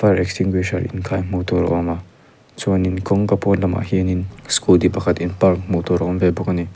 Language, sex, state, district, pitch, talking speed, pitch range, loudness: Mizo, male, Mizoram, Aizawl, 90 Hz, 220 wpm, 90-95 Hz, -19 LUFS